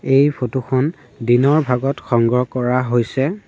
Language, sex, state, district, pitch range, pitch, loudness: Assamese, male, Assam, Sonitpur, 125-135 Hz, 130 Hz, -18 LUFS